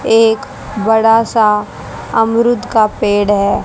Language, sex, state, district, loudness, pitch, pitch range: Hindi, female, Haryana, Jhajjar, -13 LUFS, 220 Hz, 210-225 Hz